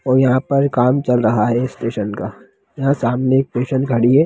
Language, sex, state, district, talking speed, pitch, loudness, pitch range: Hindi, male, Bihar, Jahanabad, 210 wpm, 130 Hz, -17 LUFS, 115-135 Hz